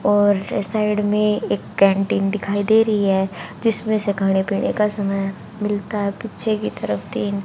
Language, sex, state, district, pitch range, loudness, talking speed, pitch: Hindi, female, Haryana, Charkhi Dadri, 195-210 Hz, -20 LUFS, 175 wpm, 205 Hz